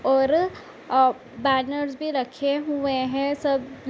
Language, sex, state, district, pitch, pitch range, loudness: Hindi, female, Uttar Pradesh, Etah, 275 Hz, 265-285 Hz, -24 LUFS